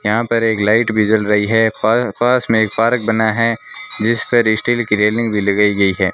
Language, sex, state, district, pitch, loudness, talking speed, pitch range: Hindi, male, Rajasthan, Bikaner, 110 Hz, -15 LUFS, 235 wpm, 105-115 Hz